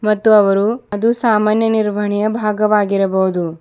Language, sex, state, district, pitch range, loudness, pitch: Kannada, female, Karnataka, Bidar, 200-220 Hz, -15 LUFS, 210 Hz